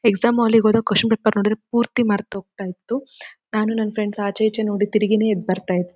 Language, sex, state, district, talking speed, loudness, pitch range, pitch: Kannada, female, Karnataka, Shimoga, 190 wpm, -20 LUFS, 205-225 Hz, 215 Hz